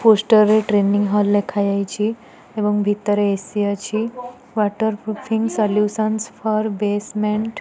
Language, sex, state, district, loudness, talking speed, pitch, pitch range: Odia, female, Odisha, Nuapada, -19 LUFS, 120 wpm, 210 Hz, 205-220 Hz